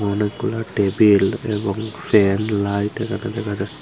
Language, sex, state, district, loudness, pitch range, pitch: Bengali, female, Tripura, Unakoti, -20 LUFS, 100-110 Hz, 105 Hz